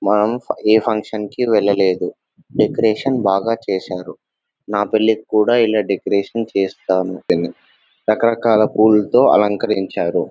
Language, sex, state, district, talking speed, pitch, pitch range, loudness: Telugu, male, Telangana, Nalgonda, 105 wpm, 105 Hz, 100-110 Hz, -17 LUFS